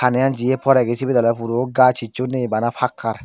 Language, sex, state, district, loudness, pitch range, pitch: Chakma, male, Tripura, Dhalai, -18 LUFS, 120-130 Hz, 125 Hz